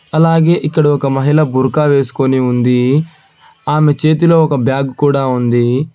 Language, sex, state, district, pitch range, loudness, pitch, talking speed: Telugu, male, Telangana, Hyderabad, 130-155 Hz, -12 LUFS, 145 Hz, 130 wpm